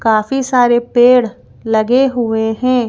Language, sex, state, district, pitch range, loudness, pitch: Hindi, female, Madhya Pradesh, Bhopal, 225-250 Hz, -13 LUFS, 240 Hz